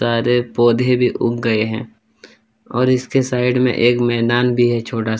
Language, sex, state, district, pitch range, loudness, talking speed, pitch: Hindi, male, Chhattisgarh, Kabirdham, 115-125 Hz, -17 LUFS, 195 wpm, 120 Hz